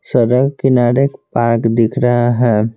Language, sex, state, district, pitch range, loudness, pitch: Hindi, male, Bihar, Patna, 115-130 Hz, -14 LUFS, 120 Hz